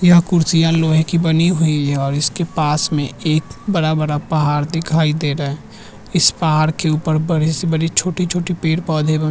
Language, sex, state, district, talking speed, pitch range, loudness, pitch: Hindi, male, Uttarakhand, Tehri Garhwal, 195 wpm, 150-165 Hz, -17 LUFS, 160 Hz